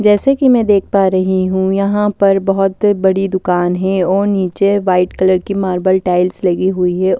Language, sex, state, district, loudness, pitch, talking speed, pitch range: Hindi, female, Delhi, New Delhi, -14 LUFS, 190 Hz, 185 wpm, 185-200 Hz